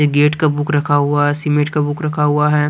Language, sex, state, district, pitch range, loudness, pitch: Hindi, male, Punjab, Kapurthala, 145-150 Hz, -16 LUFS, 150 Hz